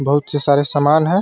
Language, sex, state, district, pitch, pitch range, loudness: Hindi, male, Jharkhand, Garhwa, 145 Hz, 145-155 Hz, -15 LUFS